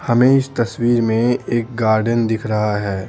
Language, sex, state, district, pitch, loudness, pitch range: Hindi, male, Bihar, Patna, 115 Hz, -17 LUFS, 110-120 Hz